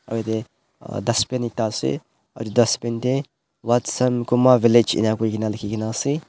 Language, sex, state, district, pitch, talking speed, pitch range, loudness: Nagamese, male, Nagaland, Dimapur, 115 Hz, 155 wpm, 110-125 Hz, -21 LUFS